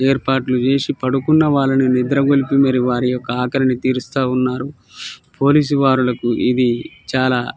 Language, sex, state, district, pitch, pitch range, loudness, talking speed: Telugu, male, Telangana, Nalgonda, 130 Hz, 125-135 Hz, -17 LUFS, 120 wpm